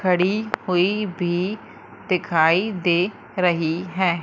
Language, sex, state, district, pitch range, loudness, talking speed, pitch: Hindi, female, Madhya Pradesh, Umaria, 175-195 Hz, -21 LUFS, 100 wpm, 180 Hz